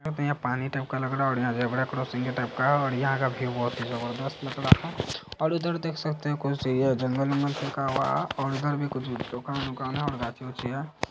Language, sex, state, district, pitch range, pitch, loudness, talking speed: Hindi, male, Bihar, Saharsa, 130-140 Hz, 135 Hz, -28 LUFS, 245 wpm